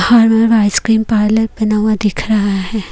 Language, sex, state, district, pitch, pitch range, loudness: Hindi, female, Haryana, Jhajjar, 215 Hz, 210-225 Hz, -13 LUFS